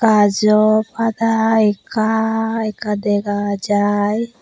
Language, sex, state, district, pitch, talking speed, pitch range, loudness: Chakma, female, Tripura, Unakoti, 215 Hz, 80 wpm, 205-225 Hz, -17 LUFS